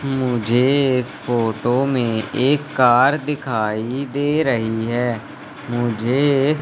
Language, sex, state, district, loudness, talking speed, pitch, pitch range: Hindi, male, Madhya Pradesh, Katni, -19 LUFS, 110 wpm, 125 Hz, 120-140 Hz